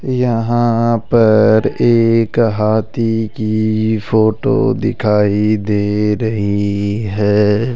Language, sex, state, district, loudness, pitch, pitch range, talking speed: Hindi, male, Rajasthan, Jaipur, -14 LUFS, 110 Hz, 105-115 Hz, 75 wpm